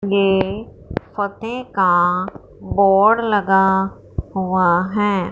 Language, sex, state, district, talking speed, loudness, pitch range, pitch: Hindi, female, Punjab, Fazilka, 80 wpm, -17 LUFS, 190-205 Hz, 195 Hz